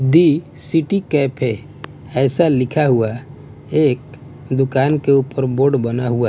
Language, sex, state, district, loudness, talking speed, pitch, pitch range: Hindi, male, Bihar, West Champaran, -17 LUFS, 145 wpm, 140 Hz, 130-145 Hz